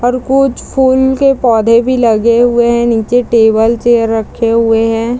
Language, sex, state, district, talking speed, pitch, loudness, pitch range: Hindi, female, Bihar, Madhepura, 185 wpm, 235 Hz, -10 LUFS, 225-250 Hz